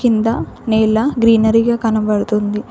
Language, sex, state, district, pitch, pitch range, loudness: Telugu, female, Telangana, Mahabubabad, 225 Hz, 215-230 Hz, -15 LUFS